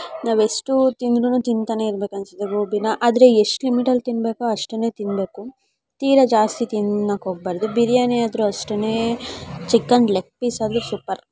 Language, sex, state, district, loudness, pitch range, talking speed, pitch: Kannada, male, Karnataka, Mysore, -20 LUFS, 205-245 Hz, 130 wpm, 225 Hz